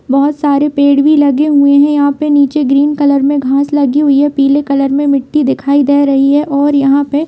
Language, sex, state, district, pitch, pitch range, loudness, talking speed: Hindi, female, Bihar, Kishanganj, 285 Hz, 280-290 Hz, -10 LUFS, 240 wpm